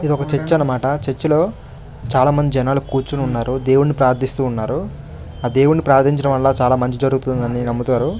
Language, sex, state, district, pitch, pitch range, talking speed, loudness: Telugu, male, Andhra Pradesh, Krishna, 135 Hz, 130-140 Hz, 155 wpm, -17 LUFS